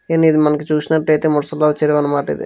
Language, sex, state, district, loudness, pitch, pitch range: Telugu, male, Andhra Pradesh, Visakhapatnam, -16 LUFS, 150 Hz, 150-155 Hz